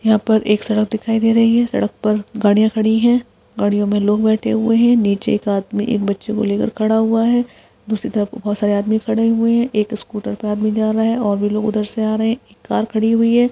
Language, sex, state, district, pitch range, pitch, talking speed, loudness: Hindi, female, Chhattisgarh, Korba, 210-225 Hz, 220 Hz, 250 wpm, -17 LUFS